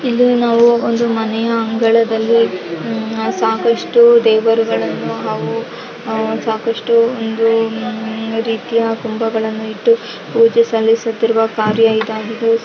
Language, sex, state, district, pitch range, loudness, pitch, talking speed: Kannada, female, Karnataka, Raichur, 225-230 Hz, -15 LUFS, 225 Hz, 85 wpm